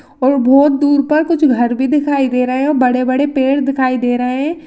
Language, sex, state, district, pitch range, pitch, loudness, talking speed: Hindi, female, Rajasthan, Churu, 255-290 Hz, 275 Hz, -13 LUFS, 205 wpm